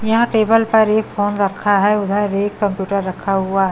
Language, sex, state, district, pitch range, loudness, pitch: Hindi, female, Delhi, New Delhi, 195-220 Hz, -16 LUFS, 205 Hz